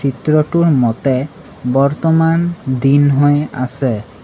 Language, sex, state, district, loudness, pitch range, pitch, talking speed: Assamese, male, Assam, Sonitpur, -14 LUFS, 130-155 Hz, 140 Hz, 70 wpm